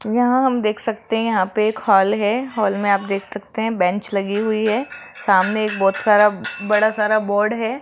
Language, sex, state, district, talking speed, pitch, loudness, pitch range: Hindi, female, Rajasthan, Jaipur, 215 wpm, 215 Hz, -18 LUFS, 205-225 Hz